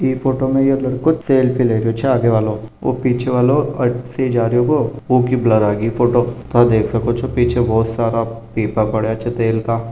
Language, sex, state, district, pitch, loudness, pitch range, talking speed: Marwari, male, Rajasthan, Nagaur, 120 Hz, -16 LUFS, 115-130 Hz, 205 wpm